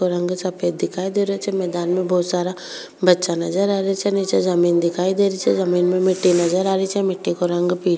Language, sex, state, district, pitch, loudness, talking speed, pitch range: Rajasthani, female, Rajasthan, Churu, 180 Hz, -19 LUFS, 250 wpm, 175-190 Hz